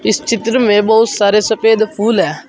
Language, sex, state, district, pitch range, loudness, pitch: Hindi, male, Uttar Pradesh, Saharanpur, 210-230 Hz, -12 LUFS, 220 Hz